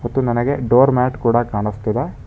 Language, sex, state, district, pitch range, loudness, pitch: Kannada, male, Karnataka, Bangalore, 115-130 Hz, -17 LUFS, 120 Hz